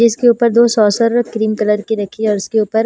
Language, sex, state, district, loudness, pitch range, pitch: Hindi, female, Himachal Pradesh, Shimla, -14 LUFS, 215-235 Hz, 220 Hz